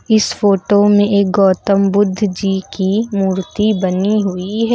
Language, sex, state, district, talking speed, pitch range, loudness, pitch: Hindi, female, Uttar Pradesh, Lucknow, 150 wpm, 190-210 Hz, -14 LUFS, 200 Hz